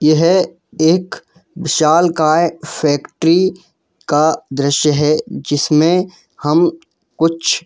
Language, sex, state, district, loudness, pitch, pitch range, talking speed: Hindi, male, Jharkhand, Jamtara, -15 LUFS, 165 Hz, 150-170 Hz, 85 wpm